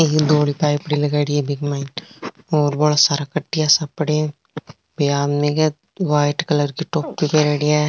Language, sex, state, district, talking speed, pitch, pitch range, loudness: Marwari, female, Rajasthan, Nagaur, 175 wpm, 150 Hz, 145-155 Hz, -19 LUFS